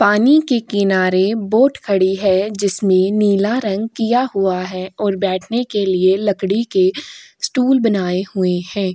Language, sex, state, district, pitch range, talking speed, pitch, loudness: Hindi, female, Uttar Pradesh, Etah, 190-225 Hz, 150 wpm, 200 Hz, -16 LUFS